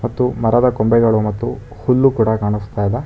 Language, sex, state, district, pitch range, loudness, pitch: Kannada, male, Karnataka, Bangalore, 105-125 Hz, -16 LUFS, 115 Hz